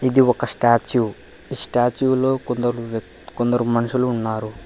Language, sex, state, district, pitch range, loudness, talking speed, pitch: Telugu, male, Telangana, Hyderabad, 115-125 Hz, -20 LUFS, 130 wpm, 120 Hz